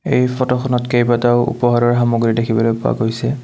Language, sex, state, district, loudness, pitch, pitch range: Assamese, male, Assam, Kamrup Metropolitan, -16 LUFS, 120 Hz, 115-125 Hz